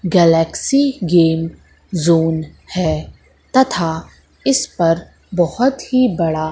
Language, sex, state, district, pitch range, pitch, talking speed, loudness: Hindi, female, Madhya Pradesh, Katni, 165-250 Hz, 170 Hz, 90 wpm, -16 LUFS